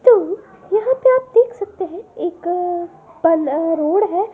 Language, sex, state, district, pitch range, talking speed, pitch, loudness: Hindi, female, Madhya Pradesh, Dhar, 345-435 Hz, 150 wpm, 380 Hz, -18 LUFS